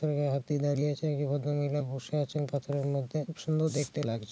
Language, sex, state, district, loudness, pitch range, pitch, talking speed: Bengali, male, West Bengal, Kolkata, -32 LUFS, 140-150 Hz, 145 Hz, 180 wpm